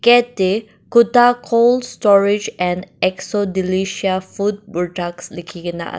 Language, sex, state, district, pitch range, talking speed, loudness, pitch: Nagamese, female, Nagaland, Dimapur, 185-225 Hz, 110 wpm, -17 LUFS, 195 Hz